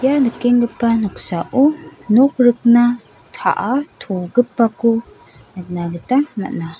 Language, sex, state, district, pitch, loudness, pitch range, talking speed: Garo, female, Meghalaya, South Garo Hills, 235 Hz, -16 LUFS, 190-250 Hz, 90 wpm